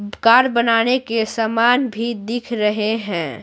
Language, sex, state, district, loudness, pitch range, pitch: Hindi, female, Bihar, Patna, -18 LUFS, 220-235 Hz, 230 Hz